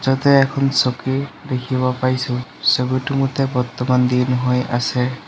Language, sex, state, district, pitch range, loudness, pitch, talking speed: Assamese, male, Assam, Sonitpur, 125-135 Hz, -18 LUFS, 125 Hz, 125 wpm